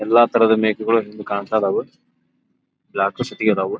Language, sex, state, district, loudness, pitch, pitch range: Kannada, male, Karnataka, Belgaum, -19 LUFS, 110 Hz, 105-115 Hz